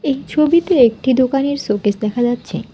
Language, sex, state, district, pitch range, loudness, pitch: Bengali, female, West Bengal, Alipurduar, 230-285 Hz, -16 LUFS, 255 Hz